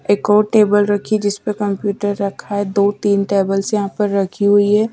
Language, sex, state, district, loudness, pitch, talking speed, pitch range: Hindi, female, Bihar, West Champaran, -16 LUFS, 205 Hz, 195 wpm, 200-210 Hz